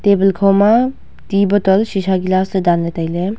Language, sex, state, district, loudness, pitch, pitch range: Wancho, female, Arunachal Pradesh, Longding, -15 LUFS, 195 Hz, 185-200 Hz